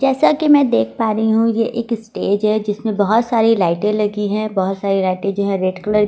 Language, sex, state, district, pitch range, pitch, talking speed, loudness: Hindi, female, Delhi, New Delhi, 200-225 Hz, 210 Hz, 245 wpm, -17 LUFS